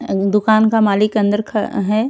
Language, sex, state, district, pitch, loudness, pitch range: Hindi, female, Uttar Pradesh, Jyotiba Phule Nagar, 210 Hz, -15 LUFS, 205-220 Hz